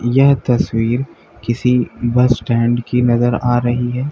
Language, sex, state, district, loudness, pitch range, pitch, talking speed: Hindi, male, Uttar Pradesh, Lalitpur, -16 LUFS, 120-125 Hz, 120 Hz, 145 wpm